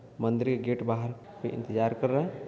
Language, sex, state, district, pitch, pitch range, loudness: Hindi, male, Bihar, Purnia, 120 Hz, 115-130 Hz, -30 LUFS